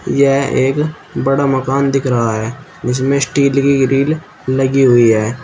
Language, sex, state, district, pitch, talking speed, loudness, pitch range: Hindi, male, Uttar Pradesh, Shamli, 135 Hz, 155 wpm, -14 LUFS, 125-140 Hz